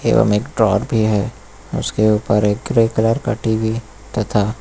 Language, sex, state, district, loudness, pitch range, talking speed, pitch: Hindi, male, Uttar Pradesh, Lucknow, -18 LUFS, 105-115 Hz, 170 wpm, 110 Hz